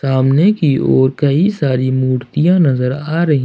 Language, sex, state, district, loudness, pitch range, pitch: Hindi, male, Jharkhand, Ranchi, -14 LUFS, 130-160 Hz, 140 Hz